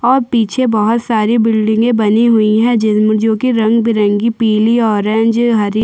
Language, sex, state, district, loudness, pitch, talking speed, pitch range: Hindi, female, Chhattisgarh, Sukma, -12 LUFS, 225 Hz, 155 wpm, 215-235 Hz